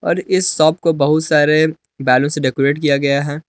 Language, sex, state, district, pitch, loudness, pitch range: Hindi, male, Jharkhand, Palamu, 150 Hz, -15 LUFS, 140-155 Hz